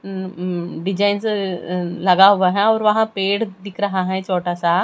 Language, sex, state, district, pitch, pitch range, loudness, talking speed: Hindi, female, Chhattisgarh, Raipur, 190 Hz, 180-205 Hz, -18 LUFS, 150 wpm